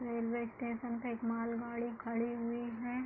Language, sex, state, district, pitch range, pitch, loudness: Hindi, female, Uttar Pradesh, Hamirpur, 230-240 Hz, 235 Hz, -39 LUFS